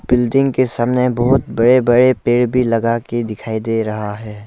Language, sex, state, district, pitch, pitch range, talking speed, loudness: Hindi, male, Arunachal Pradesh, Lower Dibang Valley, 120 Hz, 115-125 Hz, 190 wpm, -16 LUFS